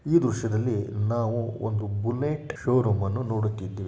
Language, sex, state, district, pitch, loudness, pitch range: Kannada, male, Karnataka, Shimoga, 115 Hz, -27 LUFS, 105-125 Hz